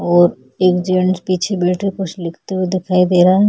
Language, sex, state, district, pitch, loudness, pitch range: Hindi, female, Chhattisgarh, Kabirdham, 185 Hz, -16 LUFS, 180-190 Hz